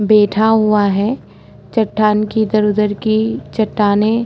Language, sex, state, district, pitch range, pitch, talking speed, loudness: Hindi, female, Uttar Pradesh, Etah, 210-220 Hz, 215 Hz, 125 wpm, -15 LUFS